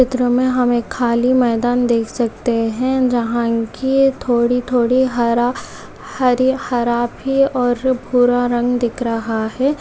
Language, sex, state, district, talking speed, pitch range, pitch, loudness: Hindi, female, Goa, North and South Goa, 130 wpm, 235-255 Hz, 245 Hz, -17 LUFS